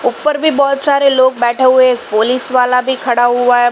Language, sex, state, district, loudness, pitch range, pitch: Hindi, female, Chhattisgarh, Balrampur, -12 LUFS, 245-275 Hz, 255 Hz